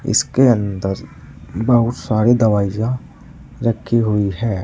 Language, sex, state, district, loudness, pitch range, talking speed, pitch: Hindi, male, Uttar Pradesh, Saharanpur, -17 LUFS, 100-120 Hz, 105 wpm, 115 Hz